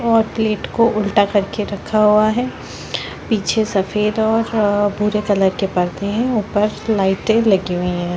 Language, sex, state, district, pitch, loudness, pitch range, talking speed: Hindi, female, Chhattisgarh, Bastar, 210 Hz, -17 LUFS, 195-220 Hz, 160 wpm